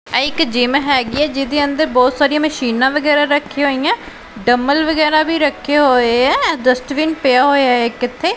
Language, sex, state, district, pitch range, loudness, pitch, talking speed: Punjabi, female, Punjab, Pathankot, 255-300 Hz, -14 LUFS, 285 Hz, 180 wpm